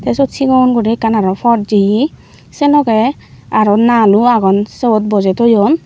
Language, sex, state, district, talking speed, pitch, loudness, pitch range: Chakma, female, Tripura, Unakoti, 145 wpm, 225 Hz, -12 LUFS, 210-250 Hz